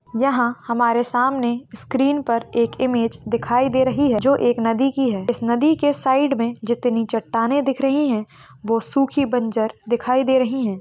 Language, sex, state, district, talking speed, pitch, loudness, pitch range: Hindi, female, Maharashtra, Dhule, 185 wpm, 245 Hz, -20 LUFS, 230-265 Hz